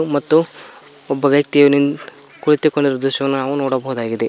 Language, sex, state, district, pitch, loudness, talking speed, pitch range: Kannada, male, Karnataka, Koppal, 140 Hz, -16 LUFS, 70 wpm, 135-145 Hz